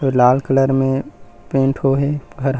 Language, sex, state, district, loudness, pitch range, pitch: Chhattisgarhi, male, Chhattisgarh, Rajnandgaon, -17 LUFS, 130-135 Hz, 135 Hz